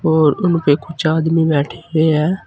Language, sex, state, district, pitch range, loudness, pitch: Hindi, male, Uttar Pradesh, Saharanpur, 150-165 Hz, -16 LUFS, 160 Hz